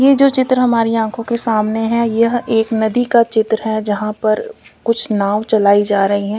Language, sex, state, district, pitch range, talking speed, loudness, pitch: Hindi, female, Punjab, Kapurthala, 215-235 Hz, 205 wpm, -15 LUFS, 225 Hz